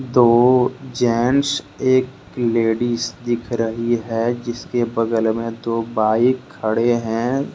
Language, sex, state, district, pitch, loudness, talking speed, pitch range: Hindi, male, Jharkhand, Deoghar, 120 Hz, -19 LUFS, 110 wpm, 115-125 Hz